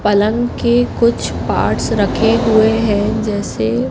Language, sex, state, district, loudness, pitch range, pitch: Hindi, female, Madhya Pradesh, Katni, -15 LUFS, 205-230 Hz, 220 Hz